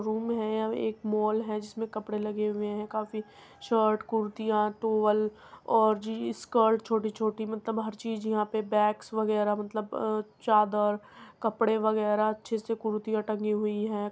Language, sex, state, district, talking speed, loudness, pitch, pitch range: Hindi, female, Uttar Pradesh, Muzaffarnagar, 145 wpm, -29 LUFS, 215 Hz, 210-220 Hz